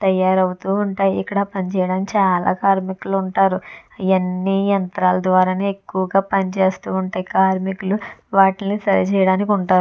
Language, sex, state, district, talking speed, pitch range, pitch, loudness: Telugu, female, Andhra Pradesh, Visakhapatnam, 110 wpm, 185-195 Hz, 190 Hz, -18 LUFS